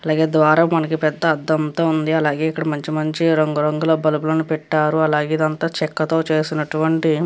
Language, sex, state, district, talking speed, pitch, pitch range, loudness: Telugu, female, Andhra Pradesh, Krishna, 150 wpm, 155 Hz, 155-160 Hz, -18 LUFS